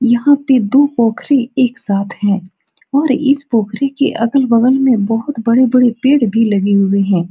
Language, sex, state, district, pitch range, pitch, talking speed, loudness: Hindi, female, Bihar, Supaul, 215-275 Hz, 245 Hz, 165 wpm, -13 LUFS